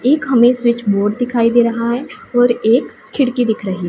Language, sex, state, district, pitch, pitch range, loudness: Hindi, female, Punjab, Pathankot, 240 Hz, 230-245 Hz, -15 LUFS